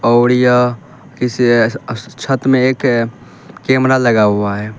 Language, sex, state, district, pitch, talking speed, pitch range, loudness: Hindi, male, Uttar Pradesh, Lalitpur, 120 Hz, 140 wpm, 115-130 Hz, -13 LUFS